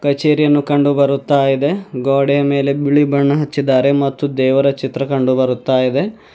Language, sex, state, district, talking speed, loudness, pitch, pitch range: Kannada, male, Karnataka, Bidar, 140 wpm, -15 LUFS, 140 Hz, 135-145 Hz